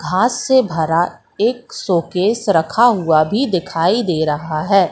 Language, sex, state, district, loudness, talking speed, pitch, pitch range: Hindi, female, Madhya Pradesh, Katni, -16 LUFS, 145 wpm, 180 Hz, 165-230 Hz